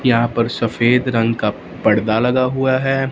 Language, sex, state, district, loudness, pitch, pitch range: Hindi, male, Punjab, Fazilka, -17 LUFS, 120 Hz, 115-130 Hz